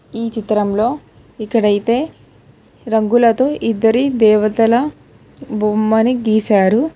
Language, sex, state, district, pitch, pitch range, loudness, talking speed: Telugu, female, Telangana, Hyderabad, 225 Hz, 215-240 Hz, -15 LUFS, 70 wpm